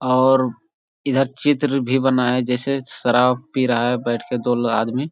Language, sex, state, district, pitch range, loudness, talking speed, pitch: Hindi, male, Bihar, Jamui, 125-135 Hz, -19 LUFS, 190 wpm, 125 Hz